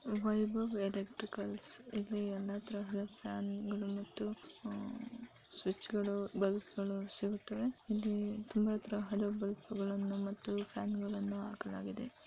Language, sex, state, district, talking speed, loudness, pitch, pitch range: Kannada, female, Karnataka, Raichur, 105 wpm, -40 LUFS, 205 Hz, 200-215 Hz